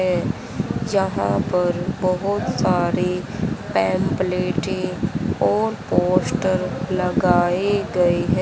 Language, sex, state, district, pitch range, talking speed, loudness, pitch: Hindi, male, Haryana, Rohtak, 180-190 Hz, 80 wpm, -21 LUFS, 180 Hz